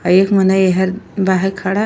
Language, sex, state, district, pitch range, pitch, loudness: Bhojpuri, female, Uttar Pradesh, Ghazipur, 190-195 Hz, 190 Hz, -15 LUFS